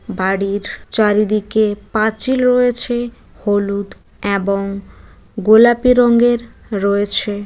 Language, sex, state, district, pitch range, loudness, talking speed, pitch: Bengali, female, West Bengal, Jalpaiguri, 200-240 Hz, -15 LUFS, 65 wpm, 215 Hz